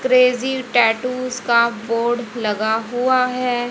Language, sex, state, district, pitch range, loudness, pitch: Hindi, female, Haryana, Jhajjar, 230-255 Hz, -18 LUFS, 245 Hz